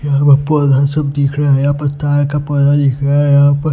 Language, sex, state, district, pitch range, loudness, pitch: Hindi, male, Punjab, Pathankot, 140-145 Hz, -13 LUFS, 145 Hz